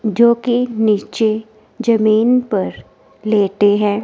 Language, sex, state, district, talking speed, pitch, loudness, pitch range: Hindi, female, Himachal Pradesh, Shimla, 105 wpm, 220 Hz, -16 LUFS, 210-235 Hz